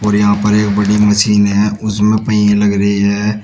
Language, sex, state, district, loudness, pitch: Hindi, male, Uttar Pradesh, Shamli, -12 LUFS, 105 Hz